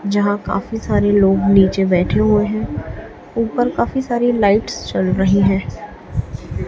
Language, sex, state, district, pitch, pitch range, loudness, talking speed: Hindi, female, Chhattisgarh, Raipur, 205 Hz, 195-225 Hz, -17 LUFS, 135 wpm